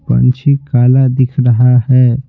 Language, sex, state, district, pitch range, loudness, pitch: Hindi, male, Bihar, Patna, 125-130 Hz, -11 LUFS, 125 Hz